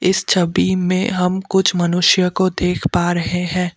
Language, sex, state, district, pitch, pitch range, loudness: Hindi, male, Assam, Kamrup Metropolitan, 180 Hz, 175-185 Hz, -17 LUFS